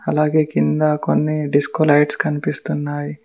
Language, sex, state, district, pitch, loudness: Telugu, male, Telangana, Mahabubabad, 150 Hz, -18 LUFS